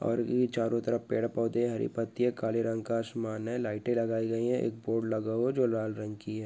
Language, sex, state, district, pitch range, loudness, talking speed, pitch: Hindi, male, West Bengal, Purulia, 110-120 Hz, -31 LUFS, 250 wpm, 115 Hz